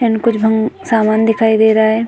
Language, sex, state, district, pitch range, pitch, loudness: Hindi, female, Uttar Pradesh, Budaun, 220-225 Hz, 220 Hz, -13 LUFS